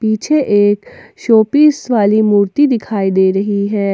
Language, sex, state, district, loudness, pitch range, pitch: Hindi, female, Jharkhand, Ranchi, -13 LUFS, 200-235 Hz, 210 Hz